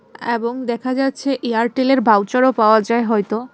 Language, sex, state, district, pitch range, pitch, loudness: Bengali, female, Tripura, West Tripura, 225-260 Hz, 235 Hz, -17 LUFS